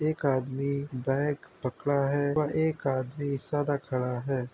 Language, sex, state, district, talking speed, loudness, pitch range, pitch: Hindi, male, Uttar Pradesh, Gorakhpur, 145 wpm, -30 LUFS, 130-145 Hz, 140 Hz